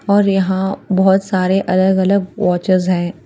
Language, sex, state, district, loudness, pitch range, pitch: Hindi, female, Bihar, Patna, -15 LUFS, 185-195 Hz, 190 Hz